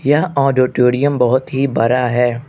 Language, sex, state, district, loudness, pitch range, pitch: Hindi, male, Arunachal Pradesh, Lower Dibang Valley, -15 LUFS, 125-140 Hz, 130 Hz